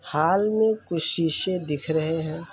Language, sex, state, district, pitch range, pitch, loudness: Hindi, male, Uttar Pradesh, Varanasi, 160-190 Hz, 165 Hz, -23 LUFS